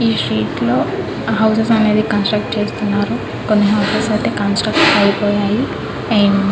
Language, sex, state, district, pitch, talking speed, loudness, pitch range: Telugu, female, Andhra Pradesh, Krishna, 210 Hz, 90 wpm, -15 LUFS, 205-220 Hz